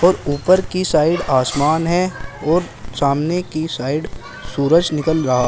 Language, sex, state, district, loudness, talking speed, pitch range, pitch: Hindi, male, Uttar Pradesh, Shamli, -18 LUFS, 130 wpm, 140-175 Hz, 155 Hz